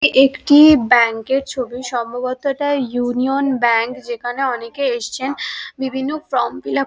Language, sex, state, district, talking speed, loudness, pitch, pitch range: Bengali, female, West Bengal, Dakshin Dinajpur, 140 wpm, -17 LUFS, 255 Hz, 240-275 Hz